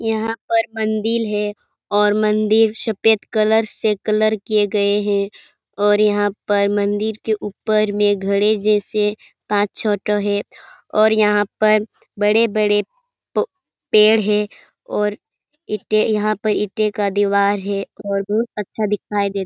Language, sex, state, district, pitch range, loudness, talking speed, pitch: Hindi, female, Bihar, Kishanganj, 205-215 Hz, -18 LUFS, 145 wpm, 210 Hz